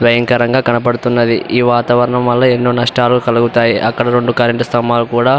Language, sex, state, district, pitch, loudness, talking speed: Telugu, male, Andhra Pradesh, Anantapur, 120 Hz, -12 LUFS, 155 wpm